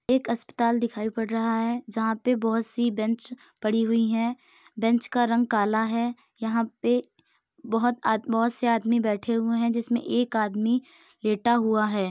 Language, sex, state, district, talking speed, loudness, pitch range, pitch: Hindi, male, Uttar Pradesh, Muzaffarnagar, 175 wpm, -25 LUFS, 225-240 Hz, 230 Hz